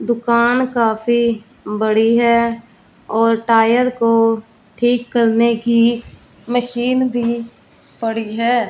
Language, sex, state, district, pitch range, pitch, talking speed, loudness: Hindi, female, Punjab, Fazilka, 225-240 Hz, 235 Hz, 95 wpm, -16 LUFS